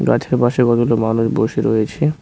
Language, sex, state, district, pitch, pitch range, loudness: Bengali, male, West Bengal, Cooch Behar, 120 Hz, 110-125 Hz, -16 LUFS